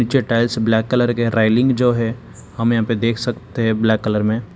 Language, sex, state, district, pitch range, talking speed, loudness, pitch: Hindi, male, Telangana, Hyderabad, 110-120 Hz, 225 wpm, -18 LUFS, 115 Hz